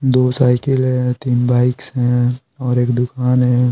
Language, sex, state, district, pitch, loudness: Hindi, male, Bihar, Patna, 125 Hz, -16 LUFS